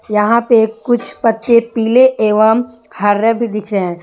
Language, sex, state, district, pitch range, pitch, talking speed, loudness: Hindi, female, Jharkhand, Garhwa, 215-235 Hz, 225 Hz, 165 wpm, -13 LUFS